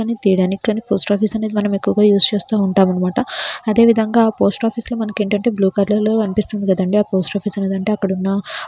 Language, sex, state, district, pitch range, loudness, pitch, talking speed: Telugu, female, Andhra Pradesh, Srikakulam, 195-220 Hz, -16 LUFS, 210 Hz, 200 wpm